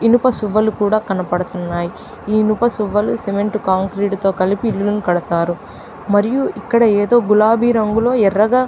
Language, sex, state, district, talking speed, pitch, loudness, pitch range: Telugu, female, Andhra Pradesh, Chittoor, 110 wpm, 210 Hz, -16 LUFS, 195-225 Hz